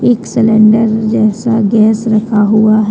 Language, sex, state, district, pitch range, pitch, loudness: Hindi, female, Jharkhand, Deoghar, 215-225 Hz, 220 Hz, -10 LUFS